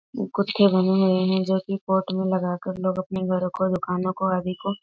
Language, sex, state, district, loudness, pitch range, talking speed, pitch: Hindi, female, Bihar, East Champaran, -23 LUFS, 185-190 Hz, 225 wpm, 185 Hz